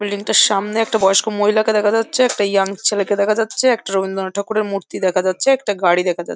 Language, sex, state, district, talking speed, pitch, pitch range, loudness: Bengali, female, West Bengal, Jhargram, 215 wpm, 205 Hz, 195-220 Hz, -17 LUFS